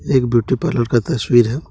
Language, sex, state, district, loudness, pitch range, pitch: Hindi, male, Jharkhand, Deoghar, -16 LUFS, 120-130 Hz, 125 Hz